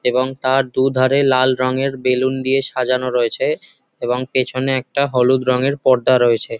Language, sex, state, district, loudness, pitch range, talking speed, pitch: Bengali, male, West Bengal, Jhargram, -17 LUFS, 125-130 Hz, 145 wpm, 130 Hz